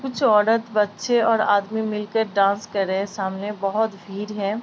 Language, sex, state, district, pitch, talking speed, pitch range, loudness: Hindi, female, Uttar Pradesh, Ghazipur, 210 Hz, 180 wpm, 200-220 Hz, -22 LUFS